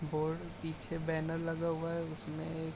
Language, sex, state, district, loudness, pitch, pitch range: Hindi, male, Bihar, Bhagalpur, -38 LUFS, 160 Hz, 160-165 Hz